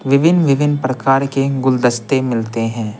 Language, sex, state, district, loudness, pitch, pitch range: Hindi, male, Bihar, Patna, -16 LUFS, 135 Hz, 120-140 Hz